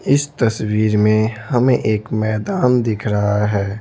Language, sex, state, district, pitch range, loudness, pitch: Hindi, male, Bihar, Patna, 105-125 Hz, -17 LUFS, 110 Hz